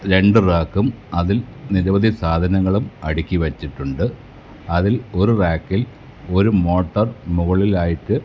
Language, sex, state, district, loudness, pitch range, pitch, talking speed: Malayalam, male, Kerala, Kasaragod, -19 LUFS, 85-110 Hz, 95 Hz, 110 wpm